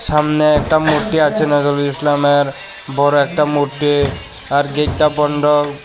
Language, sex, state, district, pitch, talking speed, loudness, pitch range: Bengali, male, Tripura, West Tripura, 145 Hz, 125 wpm, -15 LUFS, 145-150 Hz